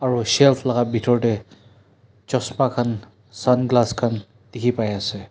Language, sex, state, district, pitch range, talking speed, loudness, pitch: Nagamese, male, Nagaland, Dimapur, 110-125 Hz, 125 wpm, -20 LUFS, 115 Hz